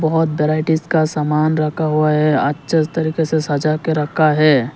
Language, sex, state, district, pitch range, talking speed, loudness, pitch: Hindi, male, Arunachal Pradesh, Lower Dibang Valley, 150-160 Hz, 175 wpm, -17 LUFS, 155 Hz